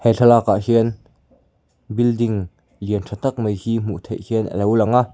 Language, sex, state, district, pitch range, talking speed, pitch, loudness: Mizo, male, Mizoram, Aizawl, 105-120 Hz, 185 wpm, 115 Hz, -19 LUFS